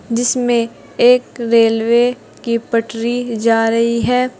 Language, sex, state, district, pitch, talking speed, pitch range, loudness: Hindi, female, Uttar Pradesh, Saharanpur, 235 Hz, 110 wpm, 230-245 Hz, -15 LUFS